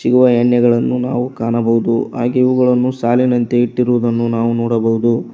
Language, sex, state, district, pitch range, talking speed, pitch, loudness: Kannada, male, Karnataka, Koppal, 115-125 Hz, 110 wpm, 120 Hz, -15 LUFS